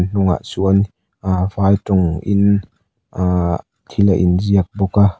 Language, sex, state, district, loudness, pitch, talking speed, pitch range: Mizo, male, Mizoram, Aizawl, -17 LUFS, 95 Hz, 160 wpm, 90-100 Hz